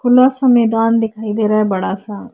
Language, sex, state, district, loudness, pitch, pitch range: Hindi, female, Bihar, Vaishali, -14 LUFS, 225 Hz, 215-245 Hz